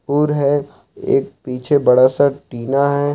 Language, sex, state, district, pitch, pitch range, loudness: Hindi, male, Bihar, Saharsa, 140 Hz, 130-145 Hz, -16 LUFS